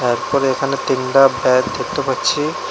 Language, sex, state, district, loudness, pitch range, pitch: Bengali, male, Tripura, West Tripura, -16 LUFS, 130-135 Hz, 135 Hz